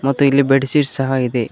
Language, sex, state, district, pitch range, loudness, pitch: Kannada, male, Karnataka, Koppal, 135-140 Hz, -15 LUFS, 135 Hz